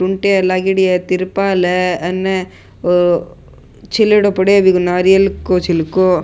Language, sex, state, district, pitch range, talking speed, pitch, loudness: Rajasthani, male, Rajasthan, Nagaur, 180-195 Hz, 135 wpm, 185 Hz, -14 LUFS